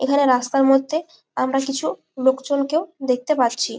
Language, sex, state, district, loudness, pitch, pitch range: Bengali, female, West Bengal, Malda, -20 LUFS, 270 Hz, 255-285 Hz